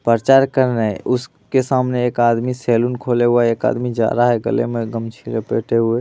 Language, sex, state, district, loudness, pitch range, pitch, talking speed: Maithili, male, Bihar, Supaul, -17 LUFS, 115-125 Hz, 120 Hz, 230 wpm